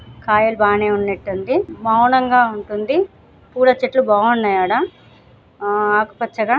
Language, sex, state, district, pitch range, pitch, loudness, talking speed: Telugu, female, Telangana, Nalgonda, 210-250 Hz, 220 Hz, -17 LUFS, 75 wpm